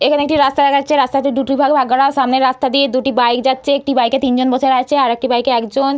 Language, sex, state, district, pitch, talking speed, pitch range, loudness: Bengali, female, West Bengal, Purulia, 270 Hz, 240 wpm, 255-280 Hz, -14 LUFS